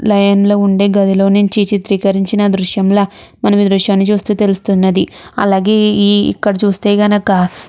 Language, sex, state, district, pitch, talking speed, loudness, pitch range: Telugu, female, Andhra Pradesh, Chittoor, 200 Hz, 150 wpm, -12 LUFS, 195-205 Hz